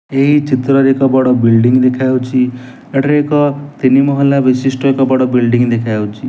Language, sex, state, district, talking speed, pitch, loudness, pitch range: Odia, male, Odisha, Nuapada, 145 wpm, 130 Hz, -12 LUFS, 125-140 Hz